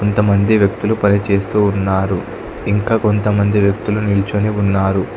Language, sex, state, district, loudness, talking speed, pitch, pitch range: Telugu, male, Telangana, Hyderabad, -16 LUFS, 125 wpm, 100 Hz, 100-105 Hz